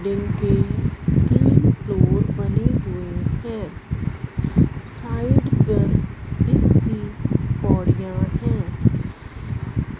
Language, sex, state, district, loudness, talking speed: Hindi, female, Punjab, Fazilka, -21 LUFS, 65 wpm